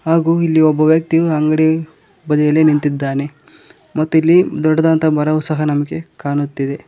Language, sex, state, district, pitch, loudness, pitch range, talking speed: Kannada, male, Karnataka, Koppal, 155 Hz, -15 LUFS, 145-160 Hz, 120 wpm